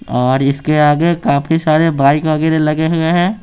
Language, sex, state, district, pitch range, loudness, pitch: Hindi, male, Bihar, Patna, 140-165 Hz, -13 LUFS, 155 Hz